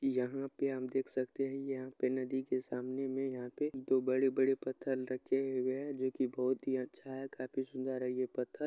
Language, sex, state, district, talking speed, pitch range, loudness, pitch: Maithili, male, Bihar, Supaul, 205 wpm, 130-135 Hz, -37 LUFS, 130 Hz